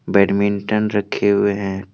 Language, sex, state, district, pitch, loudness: Hindi, male, Jharkhand, Deoghar, 100 Hz, -18 LUFS